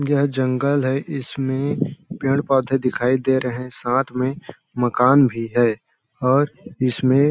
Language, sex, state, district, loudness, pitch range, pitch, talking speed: Hindi, male, Chhattisgarh, Balrampur, -20 LUFS, 125-140 Hz, 130 Hz, 150 wpm